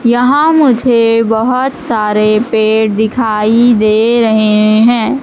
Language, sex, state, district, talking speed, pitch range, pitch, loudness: Hindi, female, Madhya Pradesh, Katni, 105 wpm, 215-245 Hz, 225 Hz, -10 LUFS